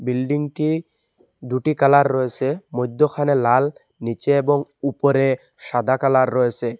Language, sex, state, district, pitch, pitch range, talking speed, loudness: Bengali, male, Assam, Hailakandi, 135 Hz, 125-145 Hz, 105 wpm, -20 LUFS